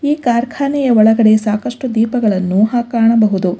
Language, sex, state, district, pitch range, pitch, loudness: Kannada, female, Karnataka, Bangalore, 215-250 Hz, 230 Hz, -13 LUFS